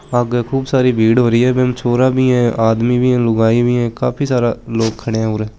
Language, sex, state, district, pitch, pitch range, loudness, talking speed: Hindi, male, Rajasthan, Churu, 120 Hz, 115-125 Hz, -15 LUFS, 235 wpm